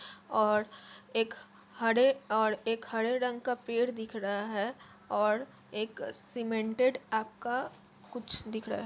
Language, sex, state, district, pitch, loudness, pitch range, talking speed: Hindi, female, Jharkhand, Jamtara, 225 Hz, -32 LUFS, 220-245 Hz, 135 wpm